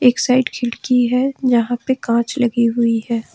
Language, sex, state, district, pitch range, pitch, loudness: Hindi, female, Jharkhand, Ranchi, 235-255 Hz, 240 Hz, -17 LUFS